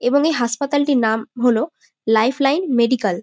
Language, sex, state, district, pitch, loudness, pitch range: Bengali, female, West Bengal, Jalpaiguri, 245 Hz, -18 LUFS, 225-280 Hz